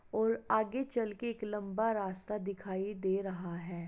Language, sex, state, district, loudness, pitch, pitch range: Hindi, female, Uttar Pradesh, Jalaun, -36 LUFS, 205 Hz, 190-220 Hz